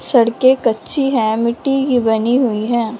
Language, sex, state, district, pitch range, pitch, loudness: Hindi, male, Punjab, Fazilka, 225-260 Hz, 235 Hz, -15 LUFS